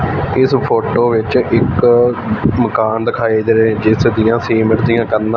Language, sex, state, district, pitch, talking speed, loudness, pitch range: Punjabi, male, Punjab, Fazilka, 115 Hz, 145 wpm, -13 LUFS, 110-120 Hz